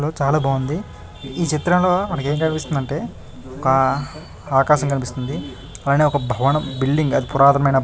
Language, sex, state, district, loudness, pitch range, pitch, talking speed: Telugu, male, Andhra Pradesh, Chittoor, -19 LUFS, 135-155 Hz, 140 Hz, 130 wpm